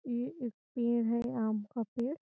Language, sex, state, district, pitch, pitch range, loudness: Hindi, female, Bihar, Gopalganj, 235 Hz, 230-245 Hz, -35 LUFS